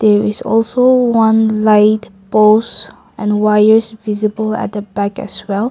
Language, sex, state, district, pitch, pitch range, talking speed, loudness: English, female, Nagaland, Kohima, 215 Hz, 210-225 Hz, 145 wpm, -13 LUFS